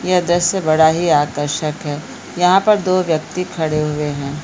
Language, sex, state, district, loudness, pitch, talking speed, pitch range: Hindi, female, Bihar, Supaul, -16 LUFS, 160 Hz, 205 wpm, 150-180 Hz